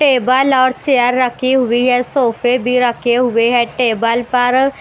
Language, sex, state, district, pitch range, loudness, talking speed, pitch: Hindi, female, Haryana, Rohtak, 240-260 Hz, -14 LUFS, 160 wpm, 250 Hz